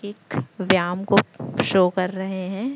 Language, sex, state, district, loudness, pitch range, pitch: Hindi, male, Chhattisgarh, Raipur, -22 LUFS, 180-200 Hz, 190 Hz